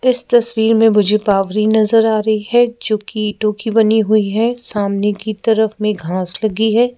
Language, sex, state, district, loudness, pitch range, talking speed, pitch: Hindi, female, Madhya Pradesh, Bhopal, -15 LUFS, 210-225 Hz, 195 wpm, 215 Hz